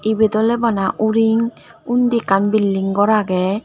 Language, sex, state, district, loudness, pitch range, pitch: Chakma, female, Tripura, Dhalai, -17 LUFS, 200-230 Hz, 220 Hz